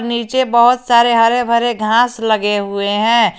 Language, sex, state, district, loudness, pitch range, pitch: Hindi, male, Jharkhand, Garhwa, -13 LUFS, 215-240 Hz, 235 Hz